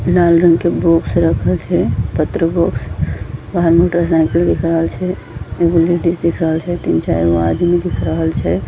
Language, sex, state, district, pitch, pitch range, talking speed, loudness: Angika, female, Bihar, Bhagalpur, 165 Hz, 125-175 Hz, 165 wpm, -15 LUFS